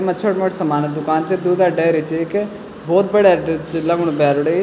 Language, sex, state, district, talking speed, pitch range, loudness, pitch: Garhwali, male, Uttarakhand, Tehri Garhwal, 235 wpm, 160-190 Hz, -17 LUFS, 170 Hz